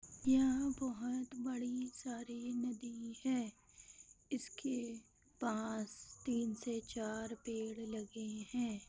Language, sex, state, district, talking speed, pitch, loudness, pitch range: Hindi, female, Bihar, Madhepura, 95 wpm, 240 Hz, -41 LUFS, 225-250 Hz